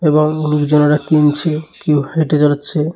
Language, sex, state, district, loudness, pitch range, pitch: Bengali, male, Tripura, West Tripura, -14 LUFS, 150-155 Hz, 150 Hz